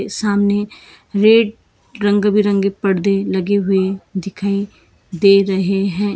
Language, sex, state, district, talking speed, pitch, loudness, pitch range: Hindi, female, Karnataka, Bangalore, 105 wpm, 200 Hz, -16 LUFS, 195-205 Hz